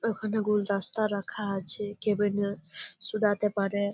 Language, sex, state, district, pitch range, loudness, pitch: Bengali, female, West Bengal, Jalpaiguri, 200-210 Hz, -29 LUFS, 205 Hz